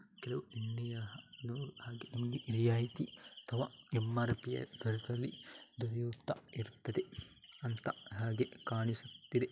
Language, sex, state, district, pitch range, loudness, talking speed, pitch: Kannada, male, Karnataka, Dakshina Kannada, 115-125 Hz, -40 LUFS, 65 wpm, 120 Hz